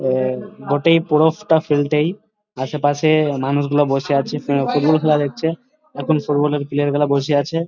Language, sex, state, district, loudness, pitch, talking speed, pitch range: Bengali, male, West Bengal, Dakshin Dinajpur, -18 LUFS, 145 Hz, 150 wpm, 145-160 Hz